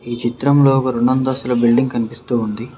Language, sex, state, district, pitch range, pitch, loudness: Telugu, male, Telangana, Mahabubabad, 120-130 Hz, 120 Hz, -16 LUFS